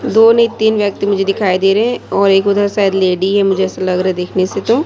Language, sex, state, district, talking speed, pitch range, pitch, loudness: Hindi, female, Chhattisgarh, Raipur, 260 wpm, 190-210 Hz, 200 Hz, -13 LUFS